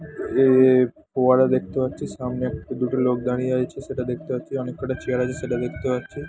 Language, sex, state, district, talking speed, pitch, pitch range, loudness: Bengali, male, West Bengal, Jhargram, 190 wpm, 130 Hz, 125-130 Hz, -22 LUFS